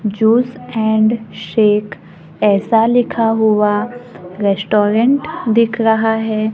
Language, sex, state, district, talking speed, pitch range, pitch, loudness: Hindi, female, Maharashtra, Gondia, 90 wpm, 210-230 Hz, 220 Hz, -15 LUFS